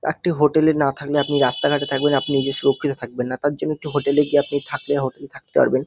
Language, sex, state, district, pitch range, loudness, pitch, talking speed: Bengali, male, West Bengal, North 24 Parganas, 140-145 Hz, -20 LUFS, 145 Hz, 265 wpm